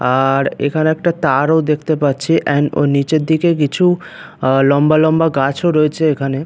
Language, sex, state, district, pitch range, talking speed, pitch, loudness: Bengali, male, West Bengal, Paschim Medinipur, 140-160 Hz, 140 wpm, 150 Hz, -14 LUFS